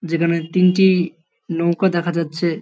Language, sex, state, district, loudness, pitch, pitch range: Bengali, male, West Bengal, Paschim Medinipur, -18 LUFS, 170 Hz, 165-180 Hz